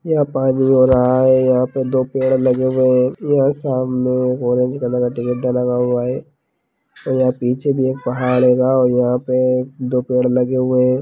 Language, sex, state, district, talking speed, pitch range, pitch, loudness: Hindi, male, Bihar, Lakhisarai, 195 wpm, 125-130 Hz, 125 Hz, -16 LUFS